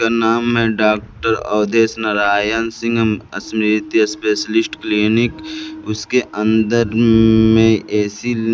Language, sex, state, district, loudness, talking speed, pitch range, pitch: Hindi, male, Bihar, Kaimur, -16 LUFS, 105 wpm, 105-115 Hz, 110 Hz